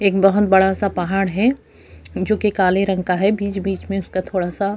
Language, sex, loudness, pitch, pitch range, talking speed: Urdu, female, -18 LUFS, 195 Hz, 185-200 Hz, 215 wpm